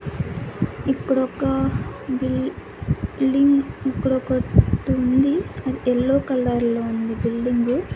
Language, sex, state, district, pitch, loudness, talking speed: Telugu, female, Andhra Pradesh, Annamaya, 245 Hz, -22 LUFS, 90 wpm